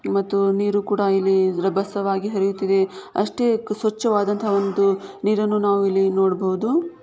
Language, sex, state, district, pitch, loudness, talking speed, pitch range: Kannada, female, Karnataka, Shimoga, 200 Hz, -21 LUFS, 110 wpm, 195-210 Hz